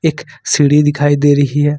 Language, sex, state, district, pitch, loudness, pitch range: Hindi, male, Jharkhand, Ranchi, 145 Hz, -12 LUFS, 145-150 Hz